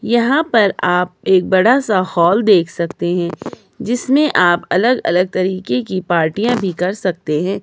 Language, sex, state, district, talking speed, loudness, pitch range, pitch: Hindi, male, Himachal Pradesh, Shimla, 165 wpm, -15 LUFS, 175-225 Hz, 185 Hz